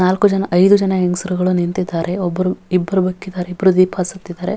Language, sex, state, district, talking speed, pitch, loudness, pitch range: Kannada, female, Karnataka, Dharwad, 130 wpm, 185 Hz, -17 LUFS, 180-190 Hz